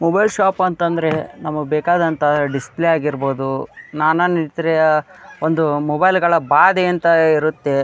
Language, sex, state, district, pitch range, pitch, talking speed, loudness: Kannada, male, Karnataka, Dharwad, 150-170 Hz, 160 Hz, 130 wpm, -17 LUFS